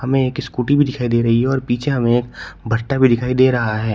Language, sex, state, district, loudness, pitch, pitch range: Hindi, male, Uttar Pradesh, Shamli, -17 LUFS, 125 Hz, 120-130 Hz